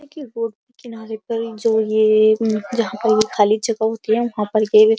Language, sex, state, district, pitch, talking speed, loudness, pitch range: Hindi, female, Uttar Pradesh, Muzaffarnagar, 220 Hz, 205 wpm, -18 LUFS, 215-230 Hz